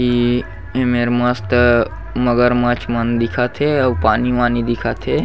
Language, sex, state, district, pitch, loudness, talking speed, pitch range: Chhattisgarhi, male, Chhattisgarh, Bastar, 120 Hz, -17 LUFS, 160 wpm, 115-125 Hz